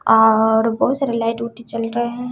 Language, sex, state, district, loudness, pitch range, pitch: Hindi, female, Bihar, West Champaran, -18 LUFS, 225-240 Hz, 230 Hz